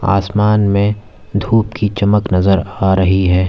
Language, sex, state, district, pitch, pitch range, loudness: Hindi, male, Uttar Pradesh, Lalitpur, 100 Hz, 95-105 Hz, -14 LUFS